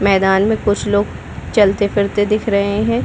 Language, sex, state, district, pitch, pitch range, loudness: Hindi, female, Chhattisgarh, Bilaspur, 205 Hz, 200-210 Hz, -16 LUFS